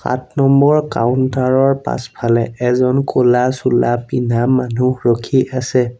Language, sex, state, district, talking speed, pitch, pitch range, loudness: Assamese, male, Assam, Sonitpur, 120 wpm, 125 Hz, 120-130 Hz, -15 LUFS